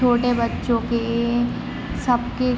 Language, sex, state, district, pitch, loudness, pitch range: Hindi, female, Jharkhand, Sahebganj, 240 Hz, -22 LUFS, 235-245 Hz